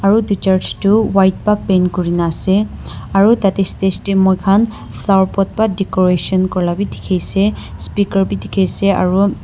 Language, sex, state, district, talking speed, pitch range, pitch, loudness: Nagamese, female, Nagaland, Dimapur, 155 wpm, 185-200 Hz, 195 Hz, -15 LUFS